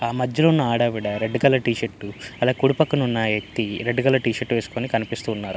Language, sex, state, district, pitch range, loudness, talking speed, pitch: Telugu, male, Andhra Pradesh, Guntur, 110-130 Hz, -22 LUFS, 195 wpm, 120 Hz